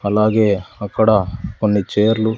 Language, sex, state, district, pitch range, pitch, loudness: Telugu, male, Andhra Pradesh, Sri Satya Sai, 100-110 Hz, 105 Hz, -17 LUFS